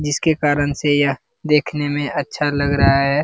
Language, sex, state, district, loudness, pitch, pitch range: Hindi, male, Bihar, Jamui, -18 LUFS, 145 Hz, 140-150 Hz